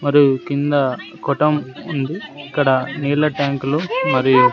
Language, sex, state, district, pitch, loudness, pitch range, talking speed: Telugu, male, Andhra Pradesh, Sri Satya Sai, 140 Hz, -18 LUFS, 135-145 Hz, 105 wpm